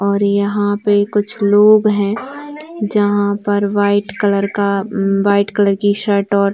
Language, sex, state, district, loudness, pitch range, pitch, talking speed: Hindi, female, Chhattisgarh, Bilaspur, -15 LUFS, 200-205 Hz, 205 Hz, 155 wpm